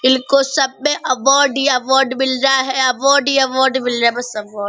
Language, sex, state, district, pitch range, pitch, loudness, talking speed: Hindi, female, Bihar, Purnia, 255-275 Hz, 265 Hz, -15 LUFS, 215 wpm